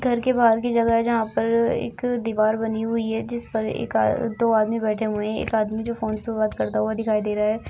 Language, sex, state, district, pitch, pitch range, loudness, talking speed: Hindi, female, Uttar Pradesh, Varanasi, 225 Hz, 215-235 Hz, -23 LUFS, 265 wpm